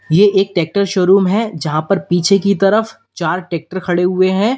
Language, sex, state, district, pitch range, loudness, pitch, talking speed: Hindi, male, Uttar Pradesh, Lalitpur, 175-200 Hz, -15 LUFS, 190 Hz, 195 wpm